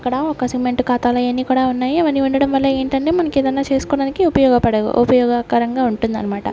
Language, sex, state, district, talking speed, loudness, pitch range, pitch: Telugu, female, Andhra Pradesh, Sri Satya Sai, 165 wpm, -17 LUFS, 245-275 Hz, 255 Hz